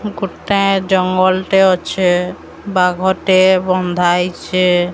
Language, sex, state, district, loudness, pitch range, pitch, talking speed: Odia, female, Odisha, Sambalpur, -14 LUFS, 180-190 Hz, 185 Hz, 75 wpm